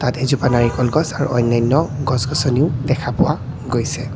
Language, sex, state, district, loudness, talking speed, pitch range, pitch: Assamese, male, Assam, Kamrup Metropolitan, -18 LUFS, 130 wpm, 125-140 Hz, 130 Hz